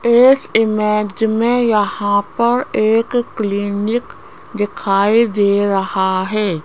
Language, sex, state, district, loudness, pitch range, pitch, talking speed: Hindi, female, Rajasthan, Jaipur, -16 LUFS, 200-235 Hz, 210 Hz, 100 wpm